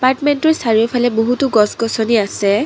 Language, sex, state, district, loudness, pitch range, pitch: Assamese, female, Assam, Kamrup Metropolitan, -15 LUFS, 220-255 Hz, 230 Hz